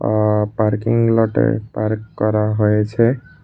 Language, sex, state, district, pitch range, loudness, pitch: Bengali, male, Tripura, West Tripura, 105-115 Hz, -17 LUFS, 110 Hz